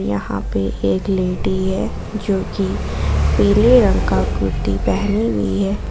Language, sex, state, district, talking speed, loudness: Hindi, female, Jharkhand, Ranchi, 140 wpm, -18 LUFS